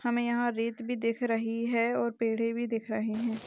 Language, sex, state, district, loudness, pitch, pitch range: Hindi, female, Chhattisgarh, Balrampur, -31 LUFS, 230 Hz, 225-240 Hz